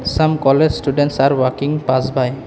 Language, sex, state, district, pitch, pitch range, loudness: English, male, Assam, Kamrup Metropolitan, 135 Hz, 130-145 Hz, -16 LUFS